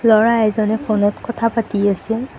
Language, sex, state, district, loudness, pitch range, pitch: Assamese, female, Assam, Kamrup Metropolitan, -17 LUFS, 215-230 Hz, 220 Hz